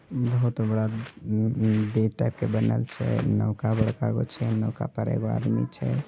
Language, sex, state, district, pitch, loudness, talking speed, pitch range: Angika, male, Bihar, Begusarai, 110 Hz, -26 LUFS, 150 wpm, 110-120 Hz